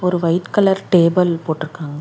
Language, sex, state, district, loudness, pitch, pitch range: Tamil, female, Karnataka, Bangalore, -17 LUFS, 170 Hz, 160-180 Hz